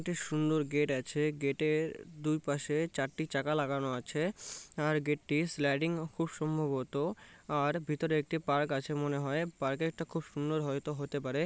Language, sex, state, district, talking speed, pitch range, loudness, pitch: Bengali, male, West Bengal, North 24 Parganas, 175 wpm, 145-155 Hz, -34 LUFS, 150 Hz